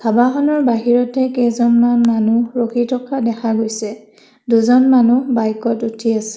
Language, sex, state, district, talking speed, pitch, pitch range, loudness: Assamese, female, Assam, Kamrup Metropolitan, 120 wpm, 235 Hz, 225-250 Hz, -15 LUFS